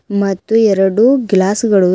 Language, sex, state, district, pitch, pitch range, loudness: Kannada, female, Karnataka, Bidar, 200 Hz, 195-225 Hz, -13 LUFS